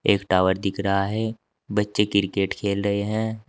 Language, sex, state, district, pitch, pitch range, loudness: Hindi, male, Uttar Pradesh, Saharanpur, 100 Hz, 100-105 Hz, -23 LUFS